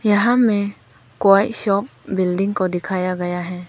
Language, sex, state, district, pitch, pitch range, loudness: Hindi, female, Arunachal Pradesh, Papum Pare, 195 Hz, 180-205 Hz, -19 LUFS